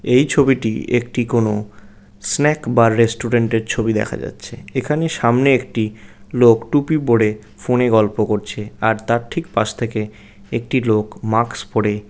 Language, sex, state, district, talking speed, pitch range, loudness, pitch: Bengali, male, West Bengal, North 24 Parganas, 150 wpm, 105-125 Hz, -18 LUFS, 115 Hz